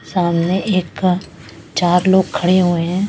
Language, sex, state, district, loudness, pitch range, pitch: Hindi, female, Bihar, West Champaran, -16 LUFS, 175-190 Hz, 180 Hz